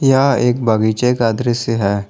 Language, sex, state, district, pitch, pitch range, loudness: Hindi, male, Jharkhand, Garhwa, 120 Hz, 110-125 Hz, -15 LUFS